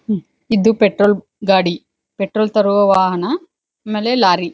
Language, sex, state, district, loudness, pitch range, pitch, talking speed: Kannada, female, Karnataka, Dharwad, -16 LUFS, 190-215 Hz, 205 Hz, 105 wpm